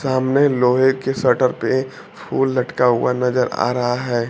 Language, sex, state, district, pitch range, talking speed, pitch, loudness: Hindi, male, Bihar, Kaimur, 125-130 Hz, 170 wpm, 125 Hz, -18 LUFS